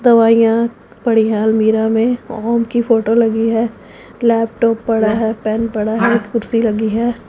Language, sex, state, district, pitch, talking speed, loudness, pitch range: Hindi, female, Punjab, Pathankot, 225 Hz, 155 wpm, -15 LUFS, 220-235 Hz